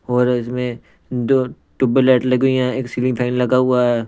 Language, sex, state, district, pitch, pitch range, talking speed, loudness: Hindi, male, Punjab, Pathankot, 125 Hz, 125-130 Hz, 205 wpm, -18 LUFS